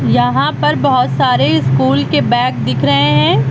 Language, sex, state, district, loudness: Hindi, female, Uttar Pradesh, Lucknow, -13 LUFS